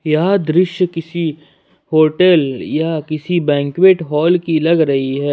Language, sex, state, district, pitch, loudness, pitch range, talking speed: Hindi, male, Jharkhand, Ranchi, 160 Hz, -15 LUFS, 155-175 Hz, 135 wpm